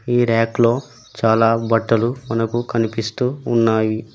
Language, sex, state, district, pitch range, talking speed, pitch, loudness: Telugu, male, Telangana, Mahabubabad, 115-120 Hz, 115 wpm, 115 Hz, -18 LUFS